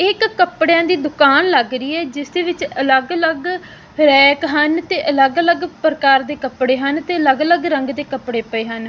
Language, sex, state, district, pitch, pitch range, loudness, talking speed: Punjabi, female, Punjab, Fazilka, 300 Hz, 270-345 Hz, -15 LUFS, 195 wpm